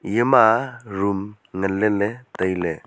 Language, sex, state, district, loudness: Wancho, male, Arunachal Pradesh, Longding, -21 LUFS